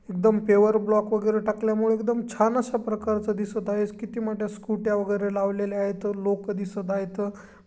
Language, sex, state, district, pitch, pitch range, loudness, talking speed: Marathi, female, Maharashtra, Chandrapur, 210 Hz, 205-220 Hz, -25 LUFS, 165 wpm